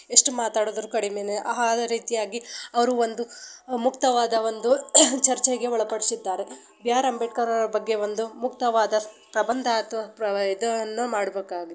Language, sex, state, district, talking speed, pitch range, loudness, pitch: Kannada, female, Karnataka, Belgaum, 105 wpm, 215-245 Hz, -23 LUFS, 230 Hz